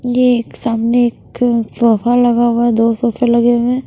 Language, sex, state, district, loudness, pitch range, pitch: Hindi, female, Punjab, Pathankot, -14 LUFS, 235-245 Hz, 240 Hz